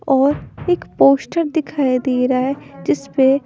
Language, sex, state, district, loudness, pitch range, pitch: Hindi, female, Punjab, Pathankot, -17 LUFS, 260-305 Hz, 275 Hz